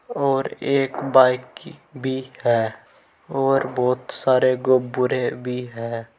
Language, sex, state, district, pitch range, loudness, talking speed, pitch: Hindi, male, Uttar Pradesh, Saharanpur, 125-135 Hz, -21 LUFS, 115 wpm, 130 Hz